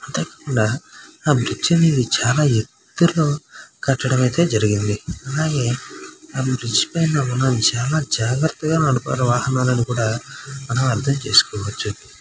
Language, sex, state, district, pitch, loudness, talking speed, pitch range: Telugu, male, Andhra Pradesh, Srikakulam, 130 Hz, -19 LUFS, 115 wpm, 120-145 Hz